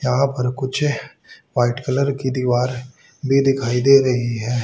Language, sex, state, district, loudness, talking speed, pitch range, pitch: Hindi, male, Haryana, Charkhi Dadri, -19 LUFS, 155 wpm, 125-135 Hz, 130 Hz